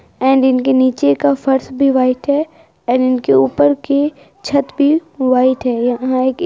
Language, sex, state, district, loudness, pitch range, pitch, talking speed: Hindi, female, Bihar, Araria, -14 LUFS, 255-280 Hz, 260 Hz, 175 wpm